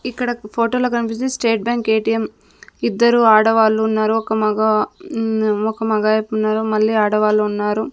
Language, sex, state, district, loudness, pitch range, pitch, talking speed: Telugu, female, Andhra Pradesh, Sri Satya Sai, -17 LUFS, 215-230 Hz, 220 Hz, 130 wpm